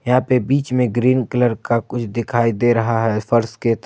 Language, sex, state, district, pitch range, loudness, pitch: Hindi, male, Jharkhand, Garhwa, 115-125 Hz, -18 LUFS, 120 Hz